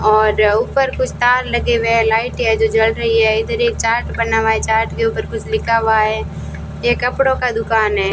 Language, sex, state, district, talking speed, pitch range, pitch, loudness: Hindi, female, Rajasthan, Bikaner, 230 wpm, 220-250 Hz, 225 Hz, -16 LUFS